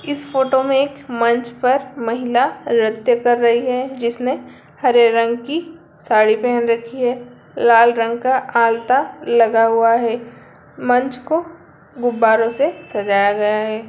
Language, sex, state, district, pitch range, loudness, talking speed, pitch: Hindi, female, Bihar, Sitamarhi, 230-260 Hz, -17 LUFS, 145 wpm, 240 Hz